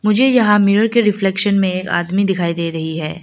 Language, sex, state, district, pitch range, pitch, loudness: Hindi, female, Arunachal Pradesh, Lower Dibang Valley, 175-210 Hz, 195 Hz, -15 LUFS